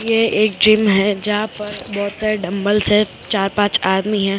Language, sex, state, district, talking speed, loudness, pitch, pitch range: Hindi, female, Maharashtra, Mumbai Suburban, 205 wpm, -17 LUFS, 205 Hz, 195-215 Hz